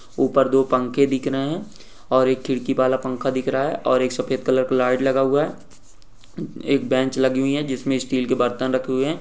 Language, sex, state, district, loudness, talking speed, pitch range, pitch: Hindi, male, Bihar, Lakhisarai, -21 LUFS, 230 wpm, 130-135 Hz, 130 Hz